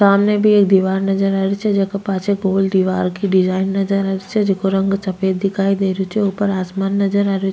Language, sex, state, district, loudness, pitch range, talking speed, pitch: Rajasthani, female, Rajasthan, Nagaur, -17 LUFS, 190-200 Hz, 240 wpm, 195 Hz